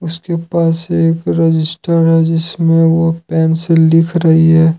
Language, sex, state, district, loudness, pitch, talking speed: Hindi, male, Jharkhand, Ranchi, -12 LUFS, 165 Hz, 150 wpm